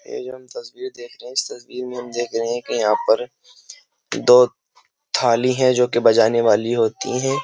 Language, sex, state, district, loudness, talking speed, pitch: Hindi, male, Uttar Pradesh, Jyotiba Phule Nagar, -19 LUFS, 200 wpm, 130 Hz